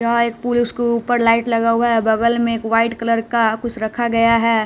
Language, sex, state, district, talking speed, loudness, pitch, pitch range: Hindi, male, Bihar, West Champaran, 245 wpm, -17 LUFS, 230 Hz, 230-235 Hz